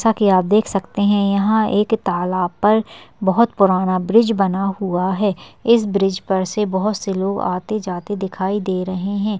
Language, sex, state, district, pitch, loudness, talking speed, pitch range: Hindi, female, Bihar, Madhepura, 200 Hz, -18 LUFS, 180 wpm, 185-210 Hz